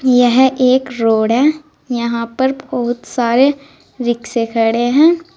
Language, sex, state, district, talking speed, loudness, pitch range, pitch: Hindi, female, Uttar Pradesh, Saharanpur, 125 wpm, -14 LUFS, 235-265 Hz, 245 Hz